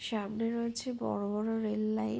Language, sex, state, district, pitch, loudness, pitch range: Bengali, female, West Bengal, Purulia, 220 Hz, -34 LUFS, 215-230 Hz